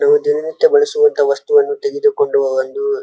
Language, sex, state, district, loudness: Kannada, male, Karnataka, Dharwad, -15 LUFS